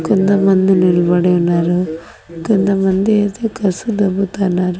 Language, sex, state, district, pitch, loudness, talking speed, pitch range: Telugu, female, Andhra Pradesh, Annamaya, 190 Hz, -14 LUFS, 90 wpm, 175-200 Hz